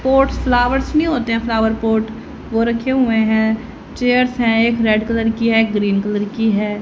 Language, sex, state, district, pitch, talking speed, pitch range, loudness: Hindi, female, Haryana, Rohtak, 225 Hz, 200 wpm, 220-245 Hz, -16 LUFS